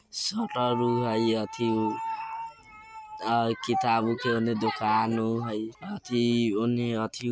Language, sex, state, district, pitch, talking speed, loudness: Bajjika, male, Bihar, Vaishali, 115 Hz, 105 wpm, -27 LUFS